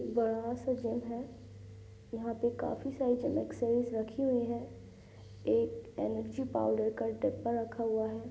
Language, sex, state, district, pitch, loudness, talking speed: Hindi, female, Bihar, Sitamarhi, 225 Hz, -35 LUFS, 160 wpm